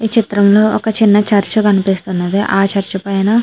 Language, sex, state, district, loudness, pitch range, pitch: Telugu, female, Andhra Pradesh, Chittoor, -13 LUFS, 195-215 Hz, 205 Hz